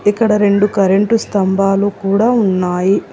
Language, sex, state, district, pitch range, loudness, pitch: Telugu, female, Telangana, Hyderabad, 195-210 Hz, -13 LUFS, 200 Hz